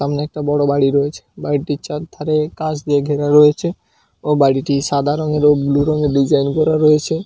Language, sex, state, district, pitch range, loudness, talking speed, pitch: Bengali, male, West Bengal, Paschim Medinipur, 140-155 Hz, -16 LUFS, 175 wpm, 150 Hz